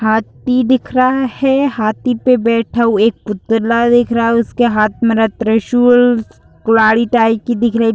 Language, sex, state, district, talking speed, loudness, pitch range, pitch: Hindi, female, Uttar Pradesh, Deoria, 180 wpm, -13 LUFS, 225-245 Hz, 230 Hz